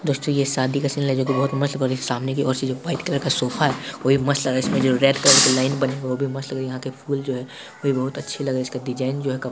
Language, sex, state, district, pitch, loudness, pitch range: Hindi, male, Bihar, Saharsa, 135 Hz, -21 LUFS, 130-140 Hz